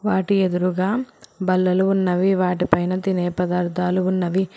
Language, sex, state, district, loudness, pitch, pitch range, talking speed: Telugu, female, Telangana, Hyderabad, -20 LUFS, 185 Hz, 180-190 Hz, 105 wpm